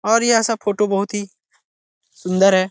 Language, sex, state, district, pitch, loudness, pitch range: Hindi, male, Bihar, Jahanabad, 205 Hz, -18 LUFS, 190-225 Hz